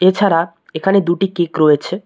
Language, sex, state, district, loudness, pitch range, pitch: Bengali, male, West Bengal, Cooch Behar, -15 LUFS, 165-195 Hz, 175 Hz